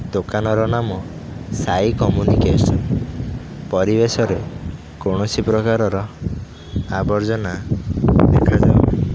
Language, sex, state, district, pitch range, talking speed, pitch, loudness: Odia, male, Odisha, Khordha, 95-110 Hz, 70 wpm, 105 Hz, -18 LUFS